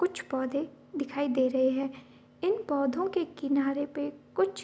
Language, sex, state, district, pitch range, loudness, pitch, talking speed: Hindi, female, Bihar, Madhepura, 265-300 Hz, -30 LUFS, 280 Hz, 180 wpm